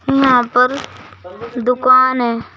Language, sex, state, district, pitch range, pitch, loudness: Hindi, male, Madhya Pradesh, Bhopal, 245-255 Hz, 250 Hz, -13 LUFS